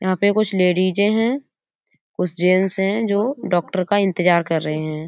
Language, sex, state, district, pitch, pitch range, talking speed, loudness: Hindi, female, Uttar Pradesh, Budaun, 185 Hz, 180-205 Hz, 175 wpm, -19 LUFS